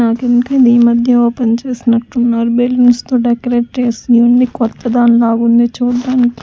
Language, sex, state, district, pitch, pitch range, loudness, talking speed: Telugu, female, Andhra Pradesh, Sri Satya Sai, 240 Hz, 235-245 Hz, -12 LUFS, 140 wpm